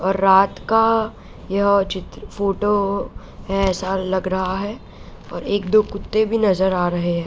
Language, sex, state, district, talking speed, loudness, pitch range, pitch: Hindi, female, Bihar, Araria, 155 wpm, -19 LUFS, 190-205 Hz, 195 Hz